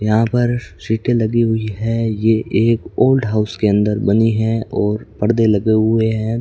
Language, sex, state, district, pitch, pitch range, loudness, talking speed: Hindi, male, Rajasthan, Bikaner, 110 Hz, 110-115 Hz, -16 LUFS, 175 wpm